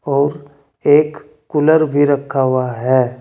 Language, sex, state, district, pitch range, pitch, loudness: Hindi, male, Uttar Pradesh, Saharanpur, 130-150 Hz, 145 Hz, -15 LUFS